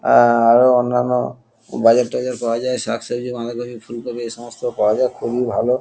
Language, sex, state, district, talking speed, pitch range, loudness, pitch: Bengali, male, West Bengal, Kolkata, 155 wpm, 115-125 Hz, -18 LUFS, 120 Hz